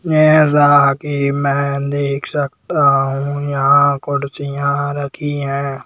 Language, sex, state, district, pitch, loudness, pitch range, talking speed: Hindi, male, Madhya Pradesh, Bhopal, 140 Hz, -15 LUFS, 140-145 Hz, 100 wpm